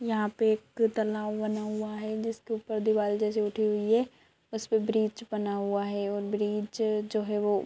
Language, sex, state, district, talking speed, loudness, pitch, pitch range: Hindi, female, Uttar Pradesh, Ghazipur, 205 wpm, -30 LUFS, 215 Hz, 210-220 Hz